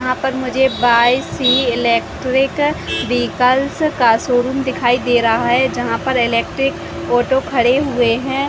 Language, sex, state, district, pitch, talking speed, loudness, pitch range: Hindi, female, Chhattisgarh, Raigarh, 250 Hz, 140 wpm, -15 LUFS, 240-265 Hz